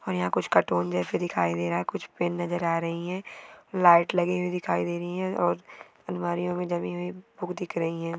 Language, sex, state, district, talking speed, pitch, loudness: Hindi, female, Maharashtra, Nagpur, 225 wpm, 175 Hz, -27 LUFS